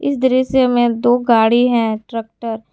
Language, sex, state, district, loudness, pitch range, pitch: Hindi, female, Jharkhand, Garhwa, -15 LUFS, 225-255 Hz, 240 Hz